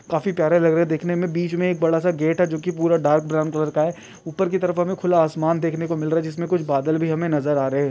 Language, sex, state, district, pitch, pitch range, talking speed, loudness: Hindi, male, Rajasthan, Churu, 165 Hz, 155-175 Hz, 290 wpm, -21 LUFS